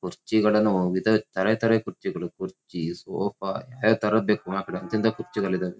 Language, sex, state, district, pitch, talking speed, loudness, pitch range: Kannada, male, Karnataka, Shimoga, 105 Hz, 115 wpm, -25 LUFS, 95-110 Hz